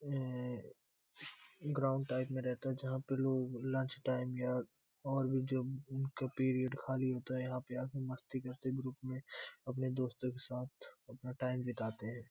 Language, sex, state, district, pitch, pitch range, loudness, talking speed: Hindi, male, Bihar, Gopalganj, 130 Hz, 125-130 Hz, -40 LUFS, 160 wpm